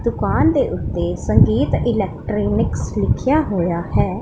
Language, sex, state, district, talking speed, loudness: Punjabi, female, Punjab, Pathankot, 115 wpm, -18 LUFS